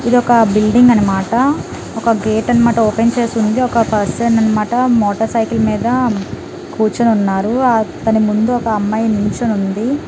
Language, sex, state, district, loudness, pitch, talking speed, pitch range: Telugu, female, Telangana, Karimnagar, -14 LUFS, 225 Hz, 150 wpm, 215-240 Hz